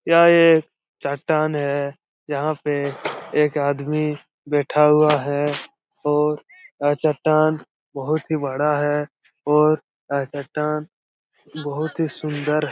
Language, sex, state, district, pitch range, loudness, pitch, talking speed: Hindi, male, Bihar, Jahanabad, 145-155 Hz, -21 LUFS, 150 Hz, 120 wpm